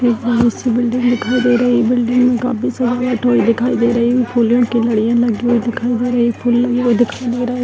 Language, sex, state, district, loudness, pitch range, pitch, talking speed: Hindi, female, Bihar, Darbhanga, -15 LUFS, 235-245 Hz, 240 Hz, 305 wpm